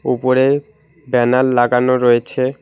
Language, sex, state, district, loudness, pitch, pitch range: Bengali, male, West Bengal, Alipurduar, -15 LUFS, 130 Hz, 125-135 Hz